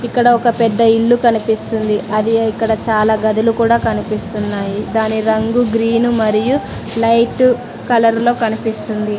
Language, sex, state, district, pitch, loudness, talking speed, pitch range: Telugu, female, Telangana, Mahabubabad, 225 Hz, -14 LUFS, 125 wpm, 220-235 Hz